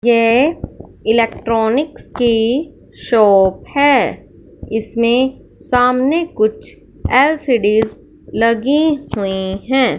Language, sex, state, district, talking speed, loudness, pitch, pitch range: Hindi, male, Punjab, Fazilka, 70 wpm, -15 LUFS, 240 Hz, 220-270 Hz